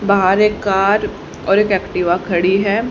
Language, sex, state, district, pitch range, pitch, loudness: Hindi, female, Haryana, Rohtak, 190-205 Hz, 195 Hz, -15 LUFS